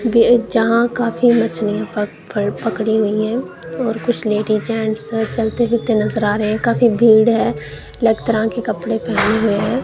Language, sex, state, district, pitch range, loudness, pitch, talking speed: Hindi, female, Punjab, Kapurthala, 215-235 Hz, -17 LUFS, 225 Hz, 165 wpm